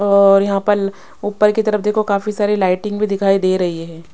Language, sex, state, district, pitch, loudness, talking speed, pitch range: Hindi, female, Bihar, Katihar, 200 Hz, -16 LUFS, 215 wpm, 195-210 Hz